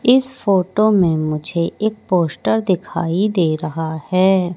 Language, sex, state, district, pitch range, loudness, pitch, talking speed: Hindi, female, Madhya Pradesh, Katni, 160-205 Hz, -18 LUFS, 180 Hz, 130 wpm